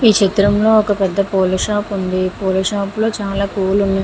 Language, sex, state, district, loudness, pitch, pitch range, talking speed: Telugu, female, Andhra Pradesh, Visakhapatnam, -16 LUFS, 200 Hz, 190-205 Hz, 225 wpm